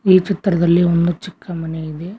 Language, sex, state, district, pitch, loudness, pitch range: Kannada, male, Karnataka, Koppal, 175 Hz, -17 LUFS, 170-185 Hz